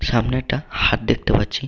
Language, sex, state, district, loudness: Bengali, male, West Bengal, Paschim Medinipur, -20 LUFS